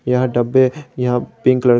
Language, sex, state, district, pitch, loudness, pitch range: Hindi, male, Jharkhand, Garhwa, 125 Hz, -17 LUFS, 125-130 Hz